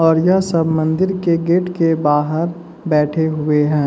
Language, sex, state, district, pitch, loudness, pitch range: Hindi, male, Uttar Pradesh, Muzaffarnagar, 165 Hz, -16 LUFS, 155-170 Hz